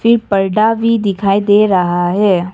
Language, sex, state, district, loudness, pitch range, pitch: Hindi, female, Arunachal Pradesh, Papum Pare, -13 LUFS, 190-215 Hz, 200 Hz